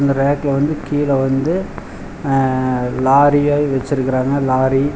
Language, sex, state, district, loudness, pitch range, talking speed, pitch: Tamil, male, Tamil Nadu, Chennai, -16 LUFS, 130-145 Hz, 120 wpm, 140 Hz